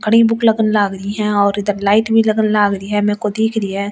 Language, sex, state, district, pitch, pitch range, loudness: Hindi, female, Delhi, New Delhi, 210 Hz, 200-220 Hz, -15 LUFS